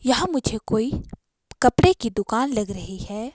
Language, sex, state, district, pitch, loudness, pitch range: Hindi, female, Himachal Pradesh, Shimla, 225 Hz, -23 LUFS, 220-260 Hz